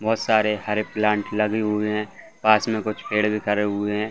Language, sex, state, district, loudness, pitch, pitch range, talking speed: Hindi, male, Jharkhand, Jamtara, -22 LUFS, 105 Hz, 105-110 Hz, 220 wpm